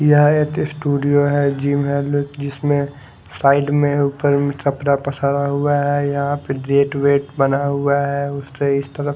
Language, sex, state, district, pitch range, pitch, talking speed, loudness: Hindi, male, Haryana, Charkhi Dadri, 140-145 Hz, 140 Hz, 170 wpm, -18 LUFS